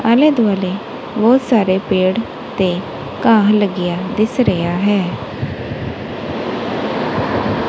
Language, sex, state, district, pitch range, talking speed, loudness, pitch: Punjabi, female, Punjab, Kapurthala, 185-230 Hz, 85 wpm, -17 LUFS, 205 Hz